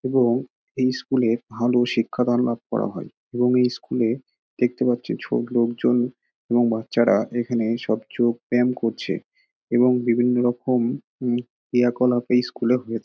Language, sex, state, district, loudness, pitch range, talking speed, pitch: Bengali, male, West Bengal, Dakshin Dinajpur, -22 LUFS, 120-125 Hz, 165 wpm, 120 Hz